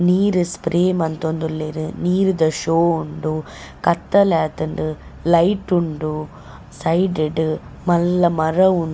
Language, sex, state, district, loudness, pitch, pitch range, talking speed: Tulu, female, Karnataka, Dakshina Kannada, -19 LUFS, 165 Hz, 155-180 Hz, 95 wpm